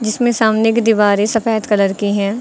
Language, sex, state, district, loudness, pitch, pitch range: Hindi, female, Uttar Pradesh, Lucknow, -15 LUFS, 215 Hz, 205-225 Hz